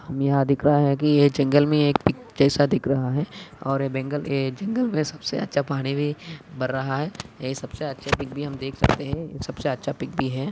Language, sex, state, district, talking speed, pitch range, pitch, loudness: Hindi, male, Maharashtra, Aurangabad, 230 wpm, 135-150 Hz, 140 Hz, -24 LUFS